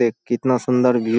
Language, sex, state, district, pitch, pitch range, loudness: Hindi, male, Bihar, Saharsa, 120 Hz, 120-125 Hz, -19 LUFS